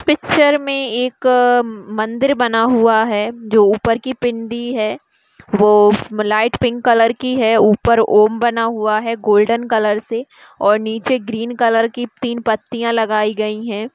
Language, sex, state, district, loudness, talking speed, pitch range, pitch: Hindi, female, Bihar, Muzaffarpur, -15 LUFS, 155 wpm, 215-245 Hz, 230 Hz